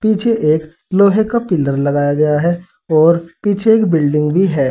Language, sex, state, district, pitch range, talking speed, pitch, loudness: Hindi, male, Uttar Pradesh, Saharanpur, 150-200 Hz, 180 wpm, 170 Hz, -14 LUFS